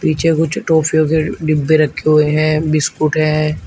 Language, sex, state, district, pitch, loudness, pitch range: Hindi, male, Uttar Pradesh, Shamli, 155 Hz, -14 LUFS, 155-160 Hz